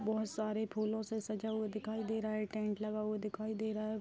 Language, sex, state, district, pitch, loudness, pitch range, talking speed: Hindi, female, Bihar, Darbhanga, 215 Hz, -39 LUFS, 215-220 Hz, 255 wpm